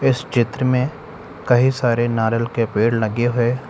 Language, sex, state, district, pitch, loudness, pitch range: Hindi, male, Telangana, Hyderabad, 120 Hz, -19 LUFS, 115-130 Hz